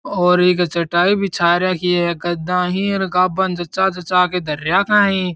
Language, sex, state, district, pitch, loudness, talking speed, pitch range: Marwari, male, Rajasthan, Churu, 180 Hz, -17 LUFS, 180 wpm, 175-190 Hz